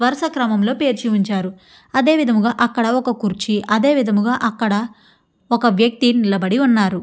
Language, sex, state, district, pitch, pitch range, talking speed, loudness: Telugu, female, Andhra Pradesh, Chittoor, 230 Hz, 210-245 Hz, 120 wpm, -17 LUFS